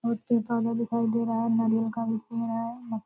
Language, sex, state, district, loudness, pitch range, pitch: Hindi, female, Bihar, Purnia, -28 LUFS, 225-235 Hz, 230 Hz